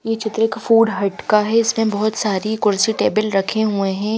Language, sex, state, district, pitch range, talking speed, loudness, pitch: Hindi, female, Haryana, Rohtak, 205-225 Hz, 215 wpm, -18 LUFS, 215 Hz